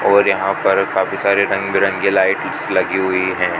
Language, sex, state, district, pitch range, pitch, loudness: Hindi, male, Rajasthan, Bikaner, 95-100 Hz, 95 Hz, -16 LUFS